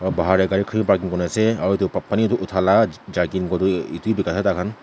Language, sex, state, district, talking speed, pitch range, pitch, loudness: Nagamese, male, Nagaland, Kohima, 250 wpm, 90-110 Hz, 95 Hz, -20 LUFS